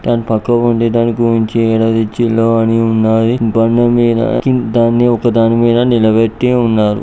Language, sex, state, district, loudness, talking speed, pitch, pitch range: Telugu, male, Andhra Pradesh, Guntur, -12 LUFS, 105 wpm, 115 Hz, 115-120 Hz